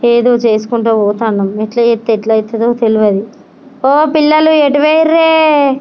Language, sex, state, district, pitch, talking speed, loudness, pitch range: Telugu, female, Telangana, Karimnagar, 235 Hz, 125 wpm, -11 LUFS, 220-295 Hz